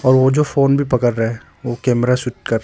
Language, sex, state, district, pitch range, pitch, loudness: Hindi, male, Arunachal Pradesh, Longding, 120-135 Hz, 125 Hz, -17 LUFS